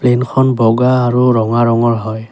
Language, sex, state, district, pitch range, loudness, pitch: Assamese, male, Assam, Kamrup Metropolitan, 115-125 Hz, -12 LUFS, 120 Hz